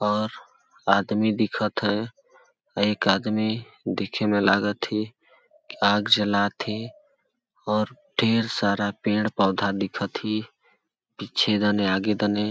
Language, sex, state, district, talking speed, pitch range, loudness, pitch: Awadhi, male, Chhattisgarh, Balrampur, 100 wpm, 100-110 Hz, -24 LUFS, 105 Hz